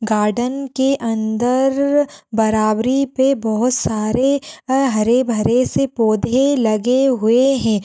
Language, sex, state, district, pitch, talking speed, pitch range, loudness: Hindi, female, Uttar Pradesh, Hamirpur, 245 Hz, 115 wpm, 220-270 Hz, -17 LUFS